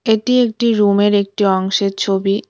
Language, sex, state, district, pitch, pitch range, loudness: Bengali, female, West Bengal, Cooch Behar, 205 Hz, 195-225 Hz, -15 LUFS